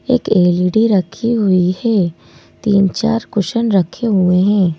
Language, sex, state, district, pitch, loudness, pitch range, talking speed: Hindi, male, Madhya Pradesh, Bhopal, 200 Hz, -15 LUFS, 185-225 Hz, 150 wpm